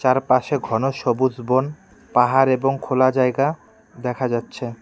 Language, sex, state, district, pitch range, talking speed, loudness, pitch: Bengali, male, West Bengal, Cooch Behar, 125-135 Hz, 135 wpm, -20 LUFS, 130 Hz